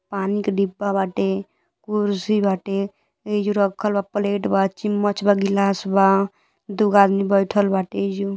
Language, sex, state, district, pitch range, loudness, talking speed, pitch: Bhojpuri, female, Uttar Pradesh, Deoria, 195-205 Hz, -20 LUFS, 145 wpm, 200 Hz